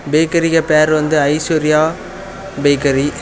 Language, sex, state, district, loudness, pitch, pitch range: Tamil, male, Tamil Nadu, Kanyakumari, -14 LUFS, 155 Hz, 145-165 Hz